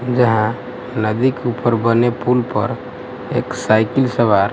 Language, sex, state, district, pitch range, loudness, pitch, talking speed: Hindi, male, Gujarat, Gandhinagar, 110-125 Hz, -17 LUFS, 120 Hz, 130 wpm